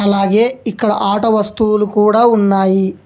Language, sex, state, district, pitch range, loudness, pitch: Telugu, male, Telangana, Hyderabad, 200-220 Hz, -13 LUFS, 210 Hz